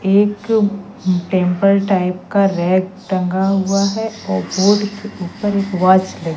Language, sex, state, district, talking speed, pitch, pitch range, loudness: Hindi, female, Madhya Pradesh, Katni, 150 wpm, 195 Hz, 185-205 Hz, -16 LUFS